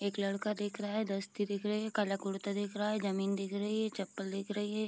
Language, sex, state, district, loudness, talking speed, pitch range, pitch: Hindi, female, Bihar, Vaishali, -36 LUFS, 260 wpm, 195-210 Hz, 205 Hz